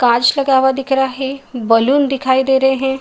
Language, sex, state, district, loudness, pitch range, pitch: Hindi, female, Bihar, Saharsa, -14 LUFS, 260-270 Hz, 265 Hz